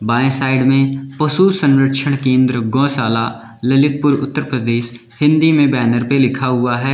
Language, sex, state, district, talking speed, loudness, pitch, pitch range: Hindi, male, Uttar Pradesh, Lalitpur, 145 wpm, -14 LUFS, 135 Hz, 120-140 Hz